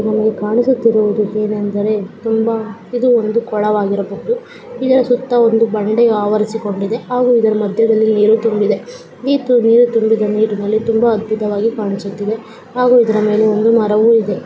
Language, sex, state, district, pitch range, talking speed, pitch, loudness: Kannada, female, Karnataka, Shimoga, 210-230 Hz, 120 wpm, 220 Hz, -14 LUFS